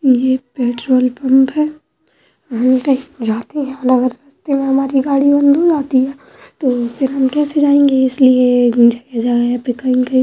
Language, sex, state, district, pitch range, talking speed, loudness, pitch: Hindi, female, Uttar Pradesh, Jalaun, 250-280 Hz, 150 wpm, -14 LUFS, 260 Hz